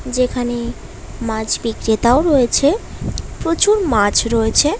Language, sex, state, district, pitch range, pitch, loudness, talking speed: Bengali, female, West Bengal, Paschim Medinipur, 225-300 Hz, 245 Hz, -16 LUFS, 100 wpm